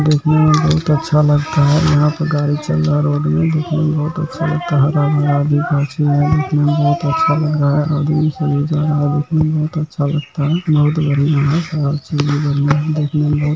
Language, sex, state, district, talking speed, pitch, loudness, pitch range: Hindi, male, Bihar, Kishanganj, 225 wpm, 150 Hz, -15 LUFS, 145-155 Hz